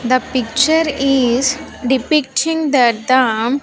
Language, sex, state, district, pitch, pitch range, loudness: English, female, Andhra Pradesh, Sri Satya Sai, 260 Hz, 255-295 Hz, -15 LUFS